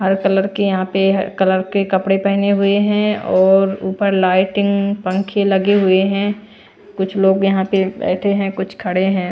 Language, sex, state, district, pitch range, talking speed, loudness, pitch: Hindi, female, Bihar, Patna, 190-200 Hz, 175 wpm, -16 LUFS, 195 Hz